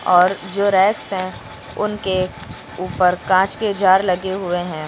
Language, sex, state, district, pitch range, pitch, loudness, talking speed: Hindi, female, Uttar Pradesh, Lucknow, 180-195 Hz, 185 Hz, -18 LUFS, 150 wpm